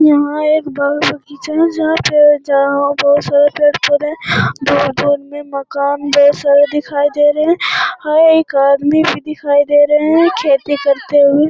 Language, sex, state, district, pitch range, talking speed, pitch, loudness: Hindi, female, Bihar, Jamui, 285-305 Hz, 165 wpm, 290 Hz, -12 LUFS